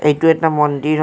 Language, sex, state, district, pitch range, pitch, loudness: Assamese, male, Assam, Kamrup Metropolitan, 150-160 Hz, 155 Hz, -15 LUFS